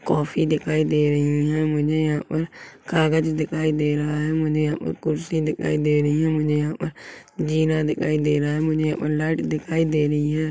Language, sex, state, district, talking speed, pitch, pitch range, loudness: Hindi, male, Chhattisgarh, Rajnandgaon, 210 wpm, 155 Hz, 150-155 Hz, -22 LUFS